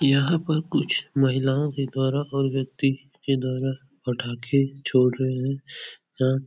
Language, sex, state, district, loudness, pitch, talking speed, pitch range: Hindi, male, Uttar Pradesh, Etah, -25 LUFS, 135 Hz, 150 wpm, 130-140 Hz